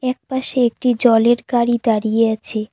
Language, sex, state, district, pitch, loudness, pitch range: Bengali, female, West Bengal, Cooch Behar, 240 Hz, -17 LUFS, 225-250 Hz